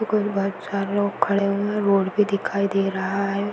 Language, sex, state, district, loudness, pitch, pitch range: Hindi, female, Uttar Pradesh, Varanasi, -22 LUFS, 200 Hz, 195-205 Hz